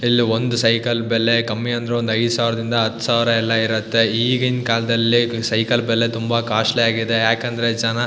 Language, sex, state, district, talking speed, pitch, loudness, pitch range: Kannada, male, Karnataka, Shimoga, 155 wpm, 115 Hz, -18 LUFS, 115-120 Hz